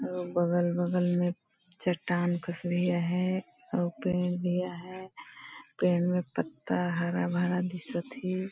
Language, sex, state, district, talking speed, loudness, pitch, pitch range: Hindi, female, Chhattisgarh, Balrampur, 135 wpm, -30 LUFS, 180 Hz, 175-180 Hz